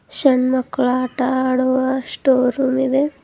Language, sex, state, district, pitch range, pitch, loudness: Kannada, female, Karnataka, Bidar, 255-265 Hz, 260 Hz, -18 LUFS